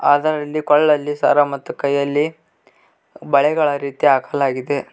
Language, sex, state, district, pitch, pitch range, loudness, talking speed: Kannada, male, Karnataka, Koppal, 145 Hz, 140-150 Hz, -17 LUFS, 95 wpm